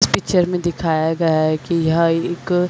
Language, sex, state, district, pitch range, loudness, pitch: Hindi, female, Chhattisgarh, Bilaspur, 160-175 Hz, -18 LUFS, 170 Hz